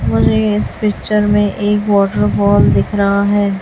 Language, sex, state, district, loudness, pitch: Hindi, female, Chhattisgarh, Raipur, -13 LUFS, 200 Hz